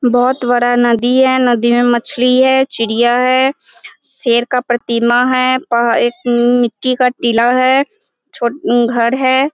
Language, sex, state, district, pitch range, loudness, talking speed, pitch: Hindi, female, Bihar, Muzaffarpur, 240-260 Hz, -13 LUFS, 140 wpm, 245 Hz